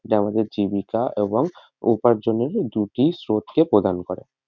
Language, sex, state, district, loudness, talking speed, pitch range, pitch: Bengali, male, West Bengal, North 24 Parganas, -22 LUFS, 135 wpm, 105-120 Hz, 110 Hz